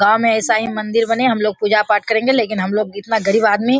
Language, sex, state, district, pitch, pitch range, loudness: Hindi, female, Bihar, Kishanganj, 220 Hz, 210-230 Hz, -16 LUFS